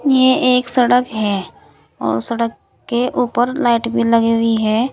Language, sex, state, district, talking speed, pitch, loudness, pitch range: Hindi, female, Uttar Pradesh, Saharanpur, 160 wpm, 235 Hz, -16 LUFS, 230-250 Hz